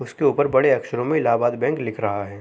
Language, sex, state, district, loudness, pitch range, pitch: Hindi, male, Uttar Pradesh, Jalaun, -21 LUFS, 110-155 Hz, 120 Hz